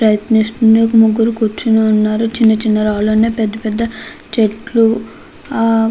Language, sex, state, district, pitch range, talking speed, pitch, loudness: Telugu, female, Andhra Pradesh, Krishna, 215-225 Hz, 140 wpm, 220 Hz, -13 LUFS